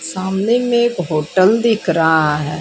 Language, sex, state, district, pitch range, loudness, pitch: Hindi, female, Bihar, West Champaran, 160-225 Hz, -15 LUFS, 185 Hz